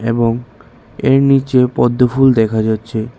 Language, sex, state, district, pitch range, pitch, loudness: Bengali, male, Tripura, West Tripura, 110-130 Hz, 120 Hz, -13 LUFS